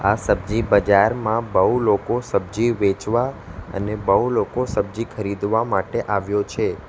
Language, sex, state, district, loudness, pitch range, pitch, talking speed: Gujarati, male, Gujarat, Valsad, -20 LUFS, 100-115 Hz, 105 Hz, 130 wpm